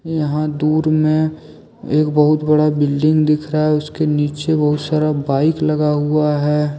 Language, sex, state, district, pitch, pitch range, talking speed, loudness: Hindi, male, Jharkhand, Deoghar, 150 Hz, 150-155 Hz, 160 wpm, -16 LUFS